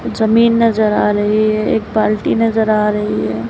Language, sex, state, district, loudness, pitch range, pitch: Hindi, female, Uttar Pradesh, Lalitpur, -14 LUFS, 210-220 Hz, 215 Hz